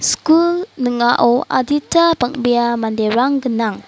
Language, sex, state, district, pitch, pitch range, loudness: Garo, female, Meghalaya, West Garo Hills, 245 Hz, 240-310 Hz, -15 LUFS